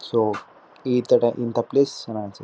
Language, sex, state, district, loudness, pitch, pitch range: Kannada, male, Karnataka, Shimoga, -22 LUFS, 120 Hz, 110-125 Hz